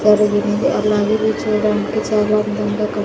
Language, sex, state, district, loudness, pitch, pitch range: Telugu, female, Andhra Pradesh, Sri Satya Sai, -17 LUFS, 210 Hz, 210-215 Hz